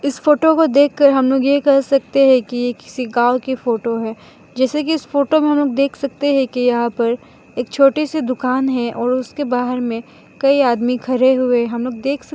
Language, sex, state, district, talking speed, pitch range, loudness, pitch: Hindi, female, Mizoram, Aizawl, 235 wpm, 245-280 Hz, -16 LUFS, 260 Hz